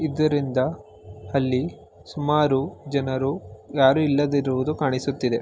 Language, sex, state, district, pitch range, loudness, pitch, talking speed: Kannada, male, Karnataka, Mysore, 115-145 Hz, -23 LUFS, 135 Hz, 75 wpm